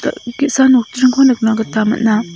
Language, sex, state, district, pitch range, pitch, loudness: Garo, female, Meghalaya, South Garo Hills, 220-265 Hz, 245 Hz, -13 LUFS